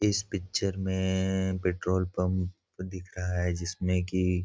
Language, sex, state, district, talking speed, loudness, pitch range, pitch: Hindi, male, Bihar, Gopalganj, 160 wpm, -30 LUFS, 90-95 Hz, 95 Hz